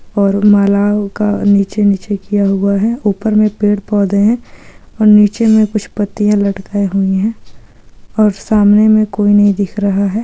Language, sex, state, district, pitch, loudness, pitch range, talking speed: Hindi, female, Andhra Pradesh, Guntur, 205 Hz, -12 LUFS, 200-215 Hz, 145 wpm